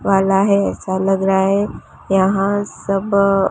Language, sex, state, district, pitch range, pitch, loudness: Hindi, female, Gujarat, Gandhinagar, 195-200 Hz, 195 Hz, -17 LUFS